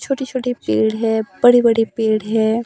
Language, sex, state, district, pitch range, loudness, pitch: Hindi, female, Himachal Pradesh, Shimla, 220-245 Hz, -17 LUFS, 225 Hz